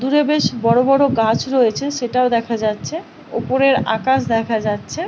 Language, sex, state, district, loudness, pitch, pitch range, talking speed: Bengali, female, West Bengal, Paschim Medinipur, -17 LUFS, 250 Hz, 225-275 Hz, 155 wpm